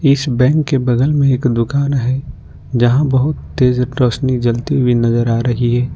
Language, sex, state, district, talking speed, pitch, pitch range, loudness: Hindi, male, Jharkhand, Ranchi, 180 wpm, 125 Hz, 120-140 Hz, -15 LUFS